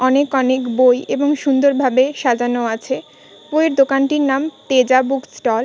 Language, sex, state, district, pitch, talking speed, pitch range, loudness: Bengali, female, West Bengal, Kolkata, 265 Hz, 160 wpm, 255-280 Hz, -16 LUFS